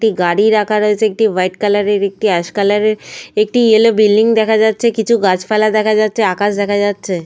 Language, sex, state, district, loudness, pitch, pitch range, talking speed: Bengali, female, Jharkhand, Sahebganj, -13 LUFS, 215 Hz, 205-220 Hz, 205 wpm